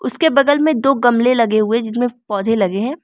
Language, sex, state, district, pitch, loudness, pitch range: Hindi, female, Arunachal Pradesh, Lower Dibang Valley, 240 Hz, -15 LUFS, 225-275 Hz